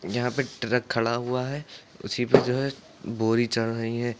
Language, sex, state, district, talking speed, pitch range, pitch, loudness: Hindi, male, Uttar Pradesh, Lucknow, 200 wpm, 115-125 Hz, 120 Hz, -26 LUFS